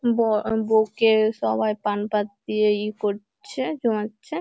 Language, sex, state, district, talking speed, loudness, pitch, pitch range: Bengali, female, West Bengal, Malda, 135 wpm, -23 LUFS, 215 Hz, 210-225 Hz